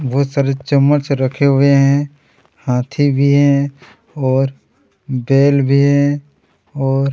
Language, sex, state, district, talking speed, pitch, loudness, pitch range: Hindi, male, Chhattisgarh, Kabirdham, 110 wpm, 140 Hz, -14 LUFS, 135-140 Hz